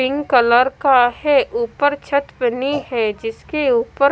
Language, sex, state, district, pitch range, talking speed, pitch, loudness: Hindi, female, Punjab, Kapurthala, 245-290 Hz, 145 wpm, 275 Hz, -17 LUFS